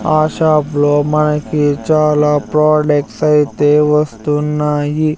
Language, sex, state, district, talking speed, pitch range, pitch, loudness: Telugu, male, Andhra Pradesh, Sri Satya Sai, 90 wpm, 145-155 Hz, 150 Hz, -13 LUFS